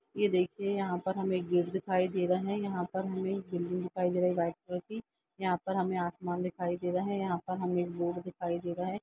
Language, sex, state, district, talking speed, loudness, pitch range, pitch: Hindi, female, Uttar Pradesh, Jalaun, 250 wpm, -33 LUFS, 175-190 Hz, 180 Hz